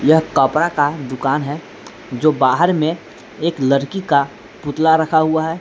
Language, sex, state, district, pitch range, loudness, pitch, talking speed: Hindi, male, Jharkhand, Palamu, 140-160 Hz, -17 LUFS, 155 Hz, 160 wpm